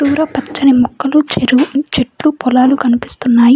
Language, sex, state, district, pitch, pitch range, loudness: Telugu, female, Telangana, Hyderabad, 265 Hz, 250-285 Hz, -13 LUFS